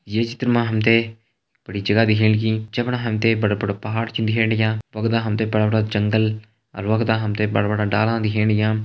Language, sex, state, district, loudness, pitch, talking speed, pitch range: Hindi, male, Uttarakhand, Uttarkashi, -20 LUFS, 110 Hz, 245 wpm, 105-115 Hz